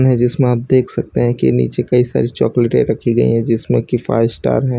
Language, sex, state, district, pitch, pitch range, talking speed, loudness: Hindi, male, Gujarat, Valsad, 120 Hz, 115-125 Hz, 225 wpm, -15 LUFS